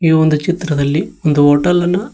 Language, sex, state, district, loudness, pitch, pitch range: Kannada, male, Karnataka, Koppal, -14 LUFS, 160 Hz, 150-175 Hz